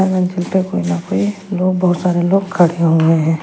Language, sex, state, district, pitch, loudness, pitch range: Hindi, female, Chhattisgarh, Raipur, 180 Hz, -15 LUFS, 165-190 Hz